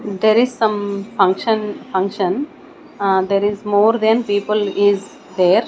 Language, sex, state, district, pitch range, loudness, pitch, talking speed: English, female, Odisha, Nuapada, 200-220 Hz, -17 LUFS, 205 Hz, 135 wpm